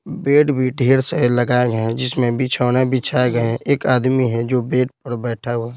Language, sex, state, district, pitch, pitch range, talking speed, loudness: Hindi, male, Bihar, Patna, 125 Hz, 120-130 Hz, 210 wpm, -18 LUFS